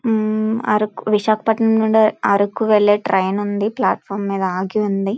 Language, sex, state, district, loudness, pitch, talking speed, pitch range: Telugu, female, Andhra Pradesh, Visakhapatnam, -17 LUFS, 210 Hz, 150 wpm, 200-220 Hz